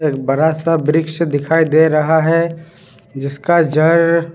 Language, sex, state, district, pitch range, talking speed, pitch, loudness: Hindi, male, Bihar, Sitamarhi, 150-165 Hz, 140 wpm, 160 Hz, -14 LUFS